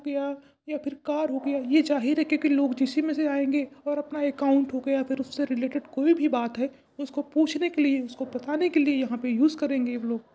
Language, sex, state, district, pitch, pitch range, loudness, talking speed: Hindi, male, Uttar Pradesh, Varanasi, 280 Hz, 265-295 Hz, -26 LUFS, 235 wpm